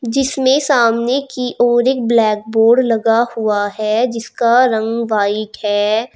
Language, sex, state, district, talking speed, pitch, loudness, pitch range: Hindi, female, Uttar Pradesh, Shamli, 135 wpm, 230 Hz, -15 LUFS, 220-250 Hz